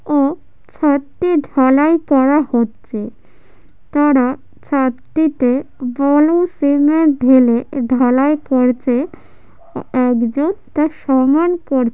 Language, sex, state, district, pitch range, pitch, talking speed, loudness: Bengali, female, West Bengal, Jhargram, 255-300 Hz, 275 Hz, 80 wpm, -15 LUFS